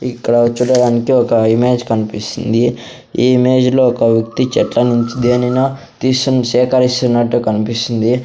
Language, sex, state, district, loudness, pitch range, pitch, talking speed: Telugu, male, Andhra Pradesh, Sri Satya Sai, -14 LUFS, 120-125 Hz, 120 Hz, 110 wpm